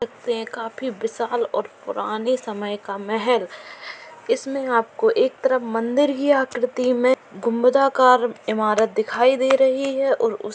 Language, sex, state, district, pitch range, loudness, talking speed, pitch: Hindi, female, Uttar Pradesh, Jalaun, 225-270 Hz, -21 LUFS, 140 wpm, 250 Hz